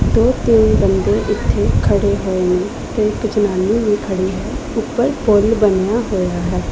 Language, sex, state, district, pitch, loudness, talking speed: Punjabi, female, Punjab, Pathankot, 185 Hz, -16 LUFS, 160 wpm